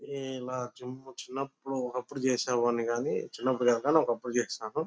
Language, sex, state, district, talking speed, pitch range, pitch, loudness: Telugu, male, Andhra Pradesh, Guntur, 160 wpm, 120-135 Hz, 125 Hz, -31 LUFS